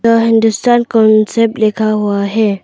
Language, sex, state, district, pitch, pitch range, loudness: Hindi, female, Arunachal Pradesh, Papum Pare, 220 Hz, 215-230 Hz, -12 LUFS